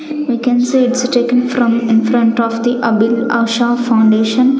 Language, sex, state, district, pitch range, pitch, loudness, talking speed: English, female, Chandigarh, Chandigarh, 230-250 Hz, 240 Hz, -13 LUFS, 155 wpm